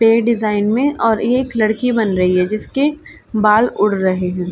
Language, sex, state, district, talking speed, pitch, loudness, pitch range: Hindi, female, Uttar Pradesh, Ghazipur, 200 wpm, 220 Hz, -16 LUFS, 205-235 Hz